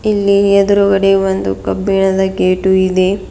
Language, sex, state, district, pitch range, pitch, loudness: Kannada, female, Karnataka, Bidar, 185-200 Hz, 195 Hz, -12 LUFS